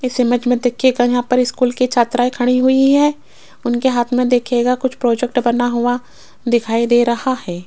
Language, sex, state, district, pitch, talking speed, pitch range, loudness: Hindi, female, Rajasthan, Jaipur, 245 Hz, 190 wpm, 240-255 Hz, -16 LUFS